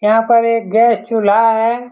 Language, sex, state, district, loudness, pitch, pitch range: Hindi, male, Bihar, Saran, -13 LUFS, 230 Hz, 225-235 Hz